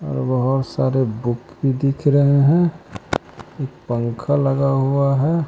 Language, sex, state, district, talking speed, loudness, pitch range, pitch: Hindi, male, Bihar, West Champaran, 140 wpm, -19 LUFS, 130-140 Hz, 135 Hz